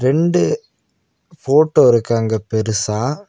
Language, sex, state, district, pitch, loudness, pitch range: Tamil, male, Tamil Nadu, Nilgiris, 130 Hz, -16 LUFS, 110-155 Hz